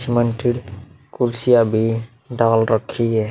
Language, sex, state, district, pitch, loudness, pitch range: Hindi, male, Uttar Pradesh, Muzaffarnagar, 115 Hz, -19 LUFS, 115-120 Hz